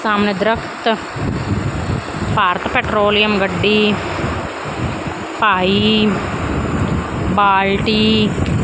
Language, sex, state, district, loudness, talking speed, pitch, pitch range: Punjabi, female, Punjab, Fazilka, -16 LUFS, 50 wpm, 210 Hz, 200-215 Hz